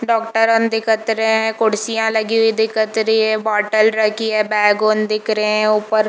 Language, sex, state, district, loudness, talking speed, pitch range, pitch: Hindi, female, Chhattisgarh, Bilaspur, -16 LUFS, 205 wpm, 215-225 Hz, 220 Hz